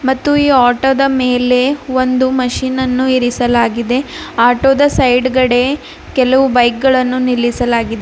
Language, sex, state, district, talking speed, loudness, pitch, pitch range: Kannada, female, Karnataka, Bidar, 105 wpm, -13 LUFS, 255 Hz, 245-265 Hz